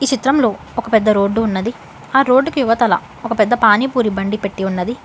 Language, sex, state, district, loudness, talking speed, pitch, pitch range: Telugu, female, Telangana, Hyderabad, -16 LUFS, 180 wpm, 230 Hz, 210-255 Hz